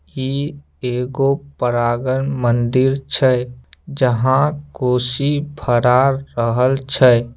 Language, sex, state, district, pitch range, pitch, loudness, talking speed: Maithili, male, Bihar, Samastipur, 125-140 Hz, 130 Hz, -17 LUFS, 80 wpm